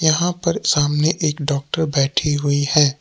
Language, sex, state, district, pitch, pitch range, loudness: Hindi, male, Jharkhand, Palamu, 150 Hz, 145-160 Hz, -18 LUFS